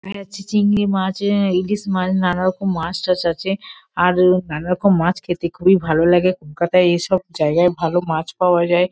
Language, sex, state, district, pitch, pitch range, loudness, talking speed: Bengali, female, West Bengal, Kolkata, 180 Hz, 175-195 Hz, -18 LUFS, 175 wpm